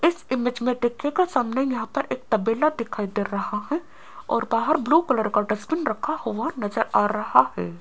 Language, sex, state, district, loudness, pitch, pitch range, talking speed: Hindi, female, Rajasthan, Jaipur, -24 LUFS, 240 Hz, 215-300 Hz, 200 wpm